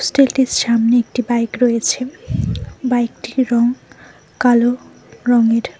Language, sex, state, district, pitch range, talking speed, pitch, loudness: Bengali, female, West Bengal, Cooch Behar, 235-255 Hz, 115 wpm, 245 Hz, -16 LUFS